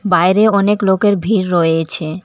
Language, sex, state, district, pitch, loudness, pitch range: Bengali, female, West Bengal, Alipurduar, 190 Hz, -14 LUFS, 170-205 Hz